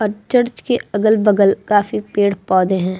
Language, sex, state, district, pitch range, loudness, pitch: Hindi, female, Uttar Pradesh, Muzaffarnagar, 195-215 Hz, -16 LUFS, 205 Hz